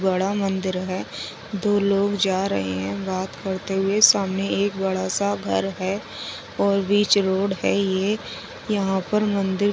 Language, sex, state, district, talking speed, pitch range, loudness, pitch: Hindi, female, Odisha, Sambalpur, 180 wpm, 190-200 Hz, -22 LUFS, 195 Hz